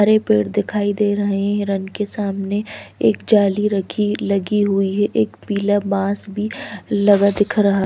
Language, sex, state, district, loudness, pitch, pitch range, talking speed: Hindi, female, Himachal Pradesh, Shimla, -18 LUFS, 205 Hz, 200-210 Hz, 170 wpm